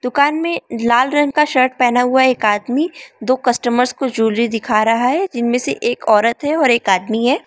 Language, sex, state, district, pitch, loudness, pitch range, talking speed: Hindi, female, Arunachal Pradesh, Lower Dibang Valley, 250 Hz, -15 LUFS, 235-285 Hz, 210 wpm